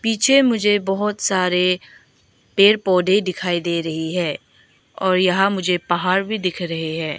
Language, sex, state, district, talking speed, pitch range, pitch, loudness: Hindi, female, Arunachal Pradesh, Lower Dibang Valley, 150 wpm, 175-205 Hz, 185 Hz, -19 LUFS